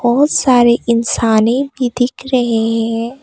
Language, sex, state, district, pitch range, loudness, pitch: Hindi, female, Arunachal Pradesh, Papum Pare, 230-255 Hz, -14 LUFS, 240 Hz